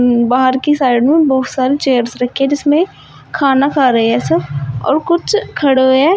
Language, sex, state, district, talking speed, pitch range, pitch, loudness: Hindi, female, Uttar Pradesh, Shamli, 195 wpm, 245-290 Hz, 265 Hz, -13 LUFS